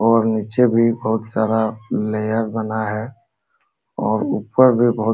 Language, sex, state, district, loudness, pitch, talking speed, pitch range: Hindi, male, Uttar Pradesh, Jalaun, -19 LUFS, 110 Hz, 150 wpm, 110-115 Hz